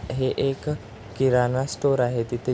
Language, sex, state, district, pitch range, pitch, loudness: Marathi, male, Maharashtra, Chandrapur, 115-135 Hz, 125 Hz, -24 LUFS